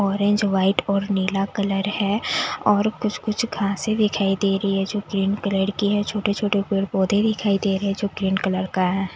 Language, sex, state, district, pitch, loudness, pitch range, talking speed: Hindi, female, Delhi, New Delhi, 200 Hz, -22 LUFS, 195-205 Hz, 195 wpm